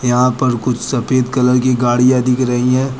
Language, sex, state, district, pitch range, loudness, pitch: Hindi, male, Uttar Pradesh, Lucknow, 125-130 Hz, -14 LUFS, 125 Hz